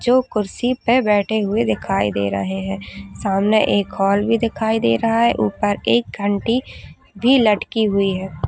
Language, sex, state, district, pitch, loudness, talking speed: Hindi, female, Chhattisgarh, Rajnandgaon, 200 Hz, -18 LUFS, 170 wpm